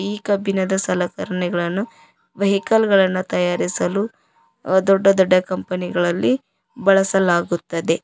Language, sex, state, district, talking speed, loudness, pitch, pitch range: Kannada, female, Karnataka, Koppal, 80 wpm, -19 LUFS, 185 Hz, 175-195 Hz